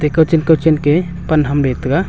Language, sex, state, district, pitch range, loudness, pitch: Wancho, male, Arunachal Pradesh, Longding, 150-160 Hz, -14 LUFS, 155 Hz